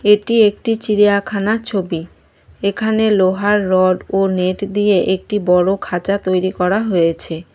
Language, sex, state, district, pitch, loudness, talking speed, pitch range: Bengali, female, West Bengal, Cooch Behar, 200 Hz, -16 LUFS, 125 wpm, 185-210 Hz